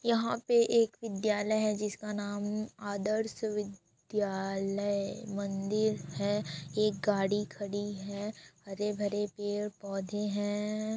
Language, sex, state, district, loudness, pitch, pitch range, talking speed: Hindi, female, Chhattisgarh, Raigarh, -33 LUFS, 205 Hz, 200-215 Hz, 100 wpm